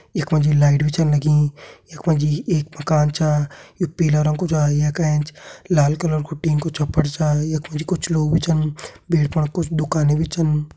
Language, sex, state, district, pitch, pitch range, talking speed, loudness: Hindi, male, Uttarakhand, Tehri Garhwal, 155 Hz, 150-160 Hz, 215 wpm, -19 LUFS